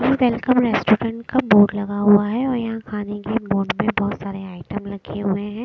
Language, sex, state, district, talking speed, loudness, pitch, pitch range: Hindi, female, Bihar, West Champaran, 200 wpm, -20 LUFS, 205 Hz, 200-230 Hz